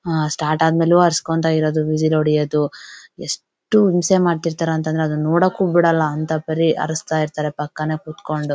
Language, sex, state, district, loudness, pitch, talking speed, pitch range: Kannada, female, Karnataka, Bellary, -18 LUFS, 160 Hz, 135 wpm, 155-165 Hz